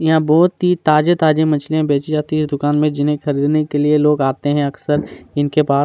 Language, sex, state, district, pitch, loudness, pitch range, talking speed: Hindi, male, Chhattisgarh, Kabirdham, 150 Hz, -16 LUFS, 145-155 Hz, 225 wpm